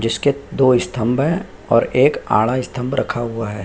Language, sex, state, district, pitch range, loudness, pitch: Hindi, male, Bihar, Lakhisarai, 115-140 Hz, -18 LUFS, 125 Hz